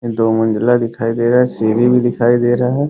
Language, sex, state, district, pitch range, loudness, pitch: Hindi, male, Bihar, Muzaffarpur, 115-125 Hz, -14 LUFS, 120 Hz